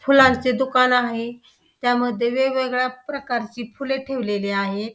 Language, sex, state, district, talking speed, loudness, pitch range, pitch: Marathi, female, Maharashtra, Pune, 120 wpm, -21 LUFS, 235-265 Hz, 250 Hz